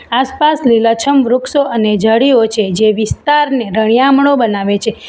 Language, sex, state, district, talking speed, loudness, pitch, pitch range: Gujarati, female, Gujarat, Valsad, 130 wpm, -11 LUFS, 235 Hz, 220-275 Hz